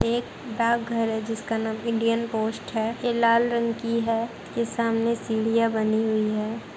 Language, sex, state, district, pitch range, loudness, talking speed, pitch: Hindi, female, Uttar Pradesh, Muzaffarnagar, 220-230 Hz, -25 LUFS, 175 wpm, 230 Hz